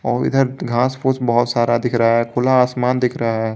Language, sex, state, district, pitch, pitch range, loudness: Hindi, male, Jharkhand, Garhwa, 120 Hz, 120-130 Hz, -17 LUFS